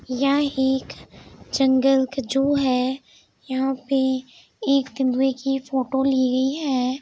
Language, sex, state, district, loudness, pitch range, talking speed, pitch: Hindi, female, Uttar Pradesh, Jalaun, -22 LUFS, 260-270 Hz, 130 wpm, 265 Hz